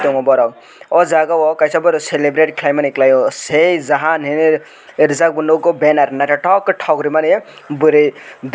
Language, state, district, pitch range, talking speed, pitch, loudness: Kokborok, Tripura, West Tripura, 145-160 Hz, 170 wpm, 155 Hz, -14 LUFS